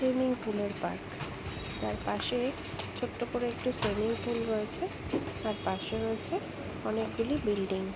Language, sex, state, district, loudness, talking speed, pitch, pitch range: Bengali, female, West Bengal, Jhargram, -34 LUFS, 145 wpm, 220 Hz, 190-245 Hz